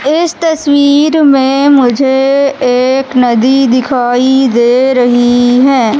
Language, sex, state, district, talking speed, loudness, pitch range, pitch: Hindi, female, Madhya Pradesh, Katni, 100 wpm, -9 LUFS, 250-280 Hz, 265 Hz